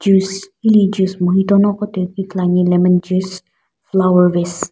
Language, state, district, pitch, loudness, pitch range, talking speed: Sumi, Nagaland, Dimapur, 190 Hz, -15 LUFS, 180-195 Hz, 140 wpm